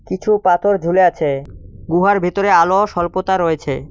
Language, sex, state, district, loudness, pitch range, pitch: Bengali, male, West Bengal, Cooch Behar, -16 LUFS, 165-195 Hz, 180 Hz